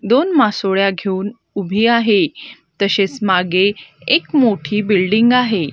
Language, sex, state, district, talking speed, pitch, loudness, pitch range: Marathi, female, Maharashtra, Gondia, 115 wpm, 205 Hz, -15 LUFS, 195-235 Hz